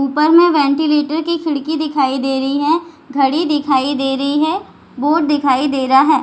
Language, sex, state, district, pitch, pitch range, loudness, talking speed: Hindi, female, Bihar, Jahanabad, 290 Hz, 270-310 Hz, -15 LUFS, 185 wpm